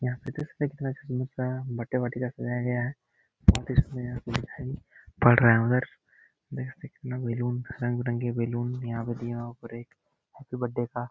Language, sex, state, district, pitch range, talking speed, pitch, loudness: Hindi, male, Bihar, Jahanabad, 120-130 Hz, 205 wpm, 125 Hz, -28 LUFS